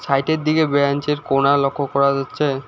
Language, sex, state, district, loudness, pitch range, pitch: Bengali, male, West Bengal, Alipurduar, -18 LUFS, 140-150 Hz, 140 Hz